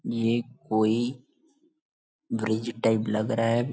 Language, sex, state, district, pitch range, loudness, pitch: Hindi, male, Chhattisgarh, Bilaspur, 110-130 Hz, -27 LUFS, 115 Hz